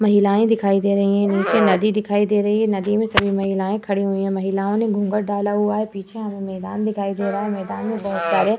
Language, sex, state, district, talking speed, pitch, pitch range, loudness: Hindi, female, Uttar Pradesh, Etah, 250 wpm, 205 Hz, 195-210 Hz, -20 LUFS